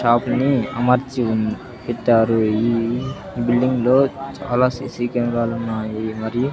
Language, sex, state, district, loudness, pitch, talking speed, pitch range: Telugu, male, Andhra Pradesh, Sri Satya Sai, -20 LUFS, 120 Hz, 110 wpm, 115-125 Hz